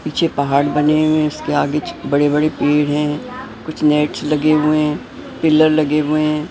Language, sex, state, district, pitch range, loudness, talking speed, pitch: Hindi, male, Maharashtra, Mumbai Suburban, 150-155 Hz, -16 LUFS, 175 wpm, 150 Hz